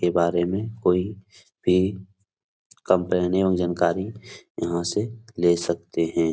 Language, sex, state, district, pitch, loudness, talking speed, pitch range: Hindi, male, Bihar, Supaul, 90 Hz, -24 LUFS, 125 wpm, 85-100 Hz